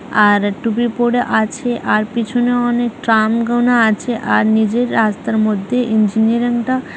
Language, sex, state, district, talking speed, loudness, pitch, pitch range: Bengali, female, West Bengal, Malda, 155 wpm, -15 LUFS, 230 Hz, 220-240 Hz